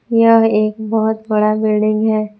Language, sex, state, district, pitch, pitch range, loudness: Hindi, female, Jharkhand, Palamu, 215 Hz, 215-220 Hz, -15 LUFS